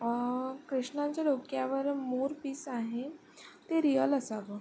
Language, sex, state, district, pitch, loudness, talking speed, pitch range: Marathi, female, Maharashtra, Sindhudurg, 265 Hz, -33 LUFS, 105 wpm, 250-285 Hz